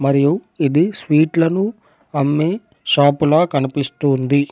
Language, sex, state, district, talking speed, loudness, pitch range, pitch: Telugu, male, Telangana, Adilabad, 105 wpm, -17 LUFS, 140-165 Hz, 150 Hz